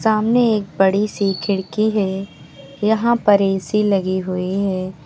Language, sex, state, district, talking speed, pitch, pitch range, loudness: Hindi, female, Uttar Pradesh, Lucknow, 140 wpm, 195 Hz, 185-215 Hz, -18 LUFS